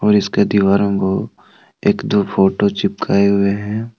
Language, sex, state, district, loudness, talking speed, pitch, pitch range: Hindi, male, Jharkhand, Deoghar, -16 LUFS, 150 wpm, 100 Hz, 100-110 Hz